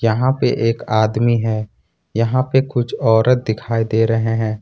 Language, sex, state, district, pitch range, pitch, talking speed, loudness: Hindi, male, Jharkhand, Ranchi, 110-120 Hz, 115 Hz, 170 wpm, -17 LUFS